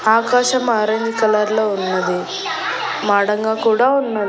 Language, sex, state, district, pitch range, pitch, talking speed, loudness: Telugu, female, Andhra Pradesh, Annamaya, 210-230 Hz, 220 Hz, 110 wpm, -17 LUFS